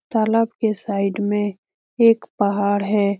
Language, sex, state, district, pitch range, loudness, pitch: Hindi, female, Bihar, Lakhisarai, 200-225 Hz, -20 LUFS, 205 Hz